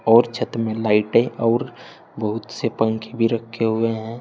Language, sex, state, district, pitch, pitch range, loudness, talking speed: Hindi, male, Uttar Pradesh, Saharanpur, 115 Hz, 110-115 Hz, -21 LUFS, 170 wpm